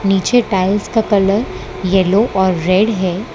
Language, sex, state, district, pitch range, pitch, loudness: Hindi, female, Gujarat, Valsad, 185-210 Hz, 195 Hz, -15 LUFS